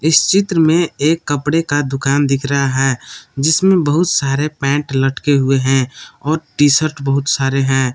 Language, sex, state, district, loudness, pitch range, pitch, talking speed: Hindi, male, Jharkhand, Palamu, -15 LUFS, 135-155 Hz, 145 Hz, 175 wpm